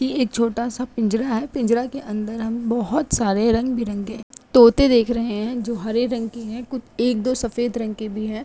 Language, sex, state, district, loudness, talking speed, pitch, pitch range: Hindi, female, Uttar Pradesh, Etah, -21 LUFS, 205 wpm, 235 Hz, 225-245 Hz